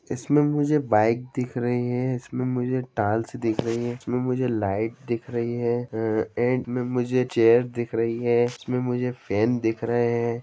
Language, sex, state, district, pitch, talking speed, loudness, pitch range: Hindi, male, Jharkhand, Sahebganj, 120 Hz, 190 wpm, -24 LUFS, 115-125 Hz